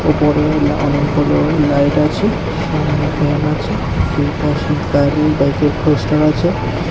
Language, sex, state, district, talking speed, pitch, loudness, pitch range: Bengali, male, Tripura, West Tripura, 105 wpm, 150 Hz, -15 LUFS, 145-150 Hz